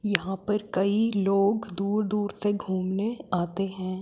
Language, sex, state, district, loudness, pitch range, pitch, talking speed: Hindi, female, Chandigarh, Chandigarh, -27 LUFS, 190-210 Hz, 200 Hz, 150 wpm